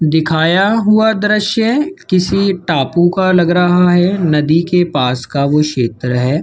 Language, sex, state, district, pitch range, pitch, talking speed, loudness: Hindi, male, Rajasthan, Jaipur, 150-195 Hz, 175 Hz, 150 wpm, -13 LUFS